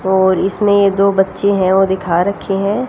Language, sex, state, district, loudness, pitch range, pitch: Hindi, female, Haryana, Jhajjar, -14 LUFS, 190-200 Hz, 195 Hz